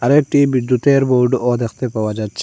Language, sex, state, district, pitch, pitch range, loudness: Bengali, male, Assam, Hailakandi, 125 Hz, 120-140 Hz, -16 LUFS